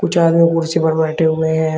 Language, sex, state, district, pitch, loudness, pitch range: Hindi, male, Uttar Pradesh, Shamli, 160 Hz, -15 LUFS, 160-165 Hz